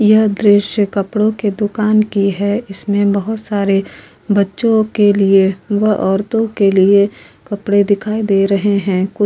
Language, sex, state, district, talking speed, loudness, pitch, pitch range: Hindi, female, Uttar Pradesh, Jyotiba Phule Nagar, 155 wpm, -14 LUFS, 205 Hz, 200-215 Hz